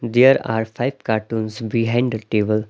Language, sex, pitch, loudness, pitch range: English, male, 115 Hz, -20 LUFS, 110-120 Hz